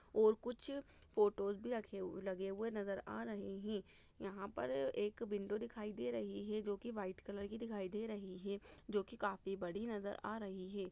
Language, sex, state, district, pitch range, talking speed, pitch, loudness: Hindi, female, Chhattisgarh, Bastar, 195-220 Hz, 210 wpm, 205 Hz, -43 LUFS